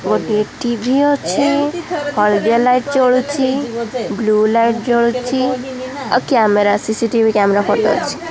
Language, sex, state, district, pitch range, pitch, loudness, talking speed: Odia, female, Odisha, Khordha, 220-265 Hz, 240 Hz, -15 LUFS, 110 wpm